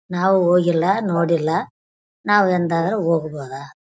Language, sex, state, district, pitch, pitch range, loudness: Kannada, female, Karnataka, Bellary, 170 Hz, 165-185 Hz, -19 LUFS